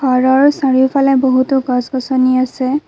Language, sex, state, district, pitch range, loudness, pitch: Assamese, female, Assam, Kamrup Metropolitan, 255-270 Hz, -13 LUFS, 260 Hz